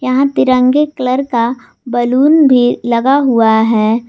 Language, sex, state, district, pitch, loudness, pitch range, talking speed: Hindi, female, Jharkhand, Garhwa, 250 Hz, -11 LUFS, 235-265 Hz, 130 wpm